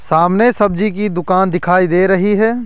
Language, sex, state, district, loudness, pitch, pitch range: Hindi, male, Rajasthan, Jaipur, -13 LUFS, 195 Hz, 180-210 Hz